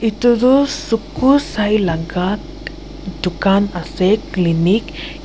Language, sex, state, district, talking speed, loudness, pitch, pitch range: Nagamese, female, Nagaland, Kohima, 105 wpm, -16 LUFS, 200 Hz, 180-230 Hz